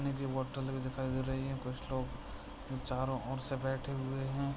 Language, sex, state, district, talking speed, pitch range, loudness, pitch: Hindi, male, Uttar Pradesh, Jyotiba Phule Nagar, 185 wpm, 130-135 Hz, -39 LUFS, 130 Hz